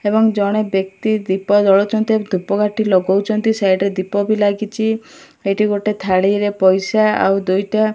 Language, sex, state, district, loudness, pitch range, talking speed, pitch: Odia, male, Odisha, Malkangiri, -16 LUFS, 195-215 Hz, 150 wpm, 205 Hz